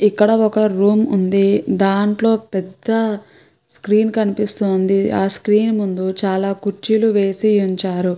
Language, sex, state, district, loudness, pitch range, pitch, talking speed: Telugu, female, Andhra Pradesh, Chittoor, -17 LUFS, 195-215 Hz, 205 Hz, 110 wpm